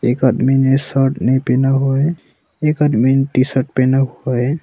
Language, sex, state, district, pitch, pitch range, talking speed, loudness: Hindi, male, Arunachal Pradesh, Longding, 135 Hz, 130-135 Hz, 205 wpm, -15 LUFS